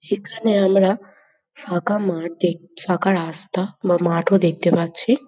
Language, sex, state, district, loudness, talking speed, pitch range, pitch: Bengali, female, West Bengal, Jhargram, -20 LUFS, 125 wpm, 175-205 Hz, 185 Hz